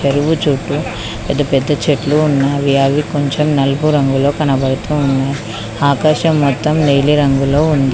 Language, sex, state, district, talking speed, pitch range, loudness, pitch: Telugu, female, Telangana, Mahabubabad, 115 wpm, 135-150 Hz, -14 LUFS, 140 Hz